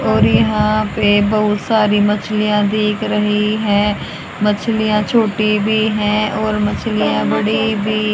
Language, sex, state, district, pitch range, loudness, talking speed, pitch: Hindi, female, Haryana, Charkhi Dadri, 210-215 Hz, -15 LUFS, 125 wpm, 210 Hz